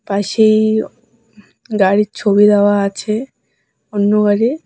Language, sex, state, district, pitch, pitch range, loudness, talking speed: Bengali, female, West Bengal, Alipurduar, 210 Hz, 205-220 Hz, -14 LUFS, 90 wpm